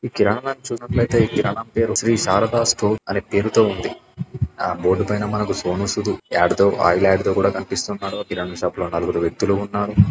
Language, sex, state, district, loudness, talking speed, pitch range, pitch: Telugu, male, Telangana, Karimnagar, -20 LUFS, 185 wpm, 95-115 Hz, 105 Hz